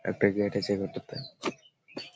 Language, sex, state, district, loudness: Bengali, male, West Bengal, Malda, -31 LUFS